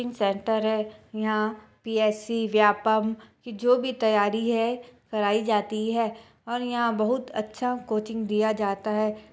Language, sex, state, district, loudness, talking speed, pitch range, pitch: Hindi, female, Chhattisgarh, Bastar, -26 LUFS, 140 wpm, 215-230 Hz, 220 Hz